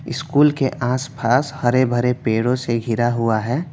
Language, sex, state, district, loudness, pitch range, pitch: Hindi, male, West Bengal, Alipurduar, -19 LUFS, 120-140 Hz, 125 Hz